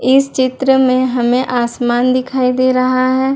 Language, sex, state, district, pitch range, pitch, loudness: Hindi, female, Bihar, Madhepura, 250-260 Hz, 255 Hz, -14 LUFS